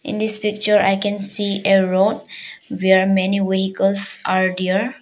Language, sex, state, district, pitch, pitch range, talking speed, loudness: English, female, Arunachal Pradesh, Papum Pare, 195 Hz, 190-205 Hz, 155 wpm, -18 LUFS